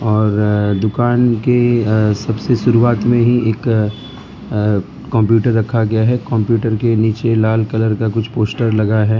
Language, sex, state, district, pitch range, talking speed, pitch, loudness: Hindi, male, Gujarat, Valsad, 110-120 Hz, 145 wpm, 110 Hz, -15 LUFS